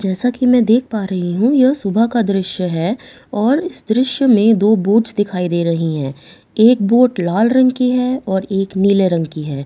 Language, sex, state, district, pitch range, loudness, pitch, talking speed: Hindi, female, Bihar, Katihar, 185-250 Hz, -15 LUFS, 215 Hz, 215 wpm